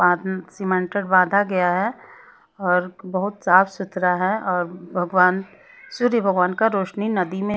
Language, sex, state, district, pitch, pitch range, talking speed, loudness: Hindi, female, Bihar, West Champaran, 190 Hz, 180-200 Hz, 140 wpm, -21 LUFS